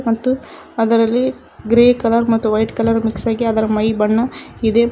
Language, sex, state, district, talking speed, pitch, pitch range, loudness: Kannada, female, Karnataka, Koppal, 170 wpm, 230 Hz, 220-235 Hz, -16 LUFS